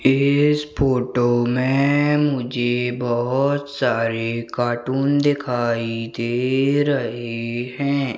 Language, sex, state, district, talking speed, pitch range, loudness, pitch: Hindi, male, Madhya Pradesh, Umaria, 80 wpm, 120-140 Hz, -20 LUFS, 125 Hz